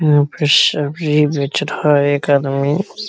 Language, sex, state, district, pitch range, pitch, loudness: Hindi, male, Bihar, Araria, 145-150 Hz, 145 Hz, -15 LUFS